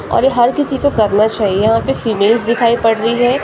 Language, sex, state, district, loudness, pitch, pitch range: Hindi, female, Maharashtra, Gondia, -13 LUFS, 230 Hz, 220-250 Hz